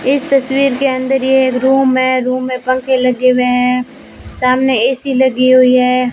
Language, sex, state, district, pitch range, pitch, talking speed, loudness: Hindi, female, Rajasthan, Bikaner, 255-265 Hz, 255 Hz, 185 wpm, -12 LUFS